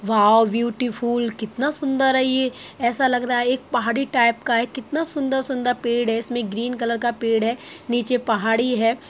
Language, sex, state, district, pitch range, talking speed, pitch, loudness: Hindi, female, Bihar, Muzaffarpur, 230-260 Hz, 190 wpm, 240 Hz, -21 LUFS